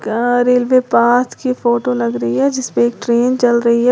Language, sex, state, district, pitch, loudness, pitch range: Hindi, female, Uttar Pradesh, Lalitpur, 240 Hz, -14 LUFS, 235-250 Hz